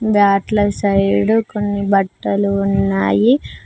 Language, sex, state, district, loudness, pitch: Telugu, female, Telangana, Mahabubabad, -16 LUFS, 195 Hz